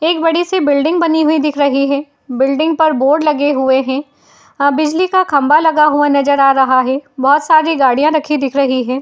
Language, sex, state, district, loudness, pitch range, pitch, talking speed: Hindi, female, Uttar Pradesh, Etah, -13 LUFS, 275-310 Hz, 290 Hz, 215 wpm